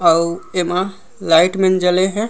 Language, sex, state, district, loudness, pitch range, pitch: Chhattisgarhi, male, Chhattisgarh, Raigarh, -16 LUFS, 170-190 Hz, 180 Hz